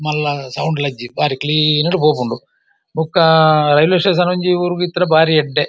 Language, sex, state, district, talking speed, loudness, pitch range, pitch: Tulu, male, Karnataka, Dakshina Kannada, 145 wpm, -15 LUFS, 150-180 Hz, 160 Hz